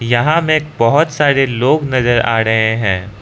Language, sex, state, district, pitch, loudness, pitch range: Hindi, male, Arunachal Pradesh, Lower Dibang Valley, 120 Hz, -13 LUFS, 115-150 Hz